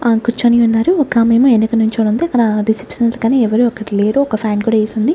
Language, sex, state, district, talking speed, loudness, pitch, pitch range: Telugu, female, Andhra Pradesh, Sri Satya Sai, 210 wpm, -14 LUFS, 230 Hz, 220-240 Hz